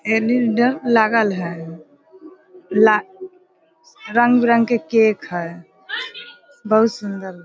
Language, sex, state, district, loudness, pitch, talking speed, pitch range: Hindi, female, Bihar, Sitamarhi, -18 LUFS, 230 Hz, 95 wpm, 210-320 Hz